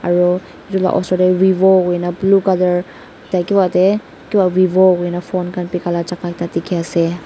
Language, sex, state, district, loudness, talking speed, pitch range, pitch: Nagamese, female, Nagaland, Dimapur, -16 LUFS, 175 wpm, 175-190 Hz, 180 Hz